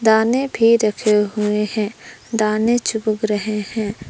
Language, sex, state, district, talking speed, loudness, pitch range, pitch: Hindi, female, Jharkhand, Palamu, 130 wpm, -18 LUFS, 210-225 Hz, 215 Hz